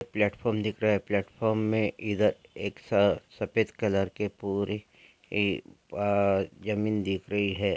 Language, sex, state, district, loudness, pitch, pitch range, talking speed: Hindi, male, Chhattisgarh, Bastar, -29 LUFS, 105 Hz, 100-105 Hz, 145 wpm